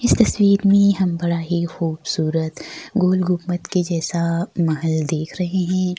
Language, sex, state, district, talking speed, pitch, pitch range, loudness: Hindi, female, Bihar, Kishanganj, 150 wpm, 175 Hz, 165-185 Hz, -20 LUFS